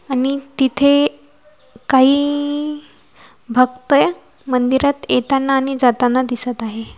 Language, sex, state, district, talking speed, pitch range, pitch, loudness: Marathi, female, Maharashtra, Washim, 85 wpm, 250-285 Hz, 270 Hz, -16 LUFS